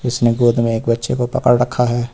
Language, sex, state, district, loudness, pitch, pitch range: Hindi, male, Uttar Pradesh, Lucknow, -16 LUFS, 120 Hz, 115-125 Hz